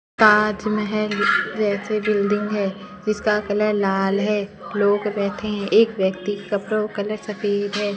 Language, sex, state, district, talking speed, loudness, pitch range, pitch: Hindi, female, Rajasthan, Bikaner, 130 wpm, -21 LUFS, 205-215 Hz, 205 Hz